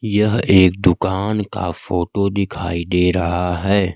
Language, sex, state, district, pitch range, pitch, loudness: Hindi, male, Bihar, Kaimur, 90-100 Hz, 95 Hz, -18 LUFS